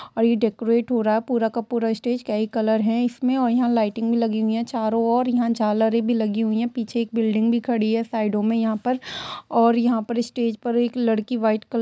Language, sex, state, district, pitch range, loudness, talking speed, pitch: Hindi, female, Bihar, East Champaran, 220-235 Hz, -22 LUFS, 255 wpm, 230 Hz